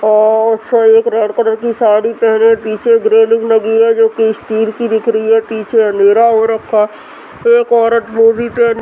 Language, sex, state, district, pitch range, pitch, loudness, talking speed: Hindi, female, Bihar, Muzaffarpur, 220-235 Hz, 225 Hz, -11 LUFS, 195 wpm